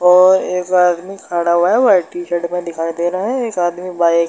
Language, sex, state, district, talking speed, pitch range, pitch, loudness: Hindi, male, Bihar, Darbhanga, 235 wpm, 170-180 Hz, 175 Hz, -15 LUFS